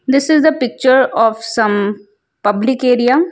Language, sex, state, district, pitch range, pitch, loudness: English, female, Gujarat, Valsad, 215-265 Hz, 245 Hz, -14 LUFS